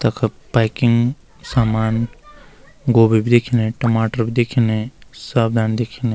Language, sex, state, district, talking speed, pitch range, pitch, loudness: Garhwali, male, Uttarakhand, Uttarkashi, 115 wpm, 115-125 Hz, 115 Hz, -18 LUFS